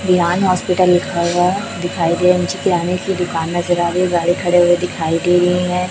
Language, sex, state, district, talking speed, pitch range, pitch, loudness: Hindi, female, Chhattisgarh, Raipur, 170 wpm, 175-180 Hz, 175 Hz, -16 LUFS